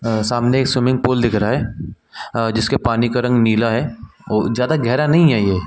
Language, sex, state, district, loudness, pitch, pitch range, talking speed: Hindi, male, Chhattisgarh, Bilaspur, -17 LUFS, 120 Hz, 110-130 Hz, 230 wpm